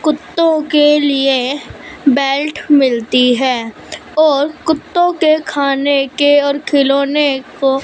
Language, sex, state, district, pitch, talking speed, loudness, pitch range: Hindi, female, Punjab, Fazilka, 285 Hz, 105 wpm, -13 LUFS, 275-305 Hz